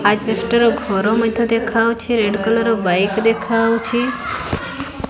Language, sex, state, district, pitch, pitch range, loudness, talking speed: Odia, female, Odisha, Khordha, 225 Hz, 215-230 Hz, -17 LUFS, 105 wpm